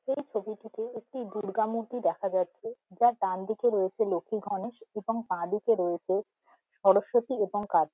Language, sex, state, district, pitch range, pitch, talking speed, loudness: Bengali, female, West Bengal, Jhargram, 195-230 Hz, 215 Hz, 150 wpm, -30 LUFS